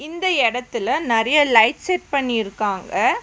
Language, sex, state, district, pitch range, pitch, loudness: Tamil, female, Tamil Nadu, Nilgiris, 225-335 Hz, 250 Hz, -19 LUFS